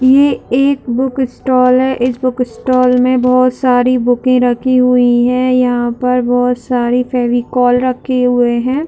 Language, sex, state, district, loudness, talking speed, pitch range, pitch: Hindi, female, Jharkhand, Sahebganj, -12 LUFS, 155 wpm, 245-255 Hz, 250 Hz